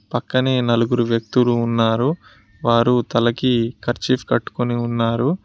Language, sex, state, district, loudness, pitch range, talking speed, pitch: Telugu, male, Telangana, Mahabubabad, -19 LUFS, 115-125 Hz, 100 wpm, 120 Hz